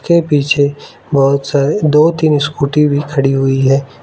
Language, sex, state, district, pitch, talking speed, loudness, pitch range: Hindi, male, Arunachal Pradesh, Lower Dibang Valley, 145 Hz, 165 wpm, -13 LUFS, 140-150 Hz